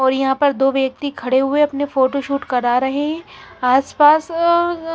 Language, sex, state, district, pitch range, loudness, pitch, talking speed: Hindi, female, Bihar, Katihar, 265-295 Hz, -17 LUFS, 280 Hz, 180 wpm